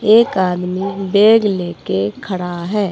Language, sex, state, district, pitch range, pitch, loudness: Hindi, female, Himachal Pradesh, Shimla, 180-205 Hz, 190 Hz, -16 LUFS